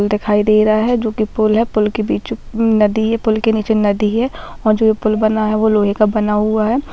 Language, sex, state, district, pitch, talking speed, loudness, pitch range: Hindi, female, Bihar, Muzaffarpur, 215 Hz, 270 wpm, -15 LUFS, 215-220 Hz